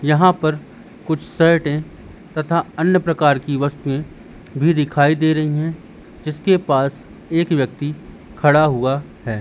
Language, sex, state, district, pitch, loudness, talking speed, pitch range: Hindi, male, Madhya Pradesh, Katni, 155 Hz, -18 LUFS, 135 wpm, 145-165 Hz